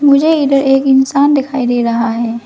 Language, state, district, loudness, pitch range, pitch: Hindi, Arunachal Pradesh, Lower Dibang Valley, -12 LUFS, 235-280 Hz, 270 Hz